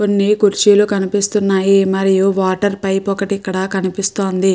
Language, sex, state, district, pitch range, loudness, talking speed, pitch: Telugu, female, Andhra Pradesh, Guntur, 190-200 Hz, -15 LUFS, 120 wpm, 195 Hz